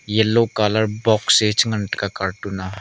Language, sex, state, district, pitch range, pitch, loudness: Wancho, male, Arunachal Pradesh, Longding, 100-110 Hz, 105 Hz, -19 LUFS